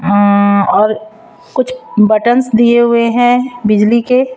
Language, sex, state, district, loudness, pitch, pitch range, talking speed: Hindi, female, Chhattisgarh, Raipur, -11 LUFS, 235 Hz, 210-245 Hz, 125 wpm